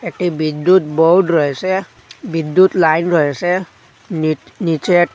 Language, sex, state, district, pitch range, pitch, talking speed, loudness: Bengali, male, Assam, Hailakandi, 155-180 Hz, 170 Hz, 95 wpm, -15 LUFS